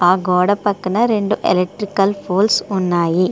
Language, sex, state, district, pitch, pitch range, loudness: Telugu, female, Andhra Pradesh, Srikakulam, 195 Hz, 180-205 Hz, -17 LUFS